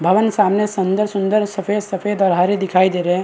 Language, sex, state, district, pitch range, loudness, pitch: Hindi, male, Chhattisgarh, Bastar, 185-210 Hz, -17 LUFS, 195 Hz